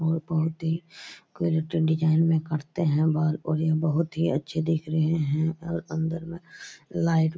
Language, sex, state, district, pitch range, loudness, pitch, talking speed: Hindi, male, Bihar, Araria, 155-165 Hz, -26 LUFS, 160 Hz, 170 wpm